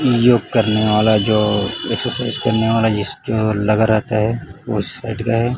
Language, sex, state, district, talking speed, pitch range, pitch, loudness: Hindi, male, Chhattisgarh, Raipur, 160 wpm, 105-115 Hz, 110 Hz, -17 LUFS